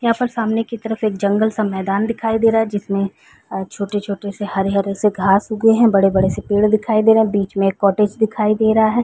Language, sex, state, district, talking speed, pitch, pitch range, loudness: Hindi, female, Chhattisgarh, Raigarh, 245 wpm, 210 Hz, 200-220 Hz, -17 LUFS